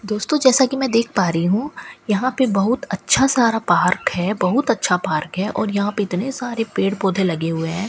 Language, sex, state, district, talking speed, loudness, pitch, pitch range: Hindi, female, Rajasthan, Bikaner, 220 wpm, -19 LUFS, 205 Hz, 185-245 Hz